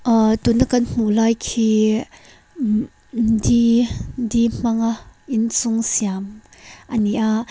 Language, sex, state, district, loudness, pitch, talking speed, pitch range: Mizo, female, Mizoram, Aizawl, -19 LUFS, 225 Hz, 130 wpm, 220-235 Hz